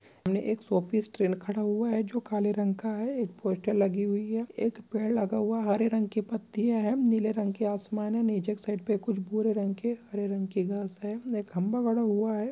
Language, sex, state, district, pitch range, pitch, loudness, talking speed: Hindi, male, Jharkhand, Sahebganj, 205-225 Hz, 215 Hz, -30 LUFS, 245 wpm